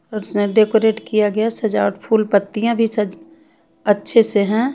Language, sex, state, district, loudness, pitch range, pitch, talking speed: Hindi, female, Haryana, Charkhi Dadri, -17 LUFS, 210-230 Hz, 220 Hz, 125 wpm